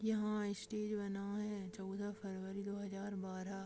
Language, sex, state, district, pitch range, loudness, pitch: Hindi, female, Chhattisgarh, Bilaspur, 195-210 Hz, -43 LUFS, 200 Hz